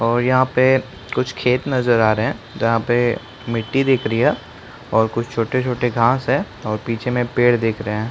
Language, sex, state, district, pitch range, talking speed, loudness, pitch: Hindi, male, Chhattisgarh, Bastar, 115-125 Hz, 200 wpm, -19 LUFS, 120 Hz